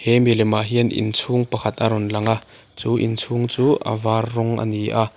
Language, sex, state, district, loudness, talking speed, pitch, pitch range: Mizo, male, Mizoram, Aizawl, -20 LUFS, 210 wpm, 115 Hz, 110-120 Hz